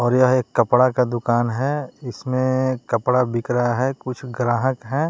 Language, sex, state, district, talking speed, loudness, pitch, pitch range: Hindi, male, Bihar, West Champaran, 175 wpm, -20 LUFS, 125 Hz, 120-130 Hz